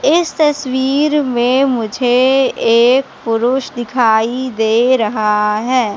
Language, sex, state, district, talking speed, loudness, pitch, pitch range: Hindi, female, Madhya Pradesh, Katni, 100 wpm, -14 LUFS, 250 Hz, 230-265 Hz